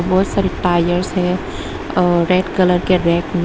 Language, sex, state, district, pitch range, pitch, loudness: Hindi, female, Tripura, West Tripura, 175-185 Hz, 180 Hz, -16 LUFS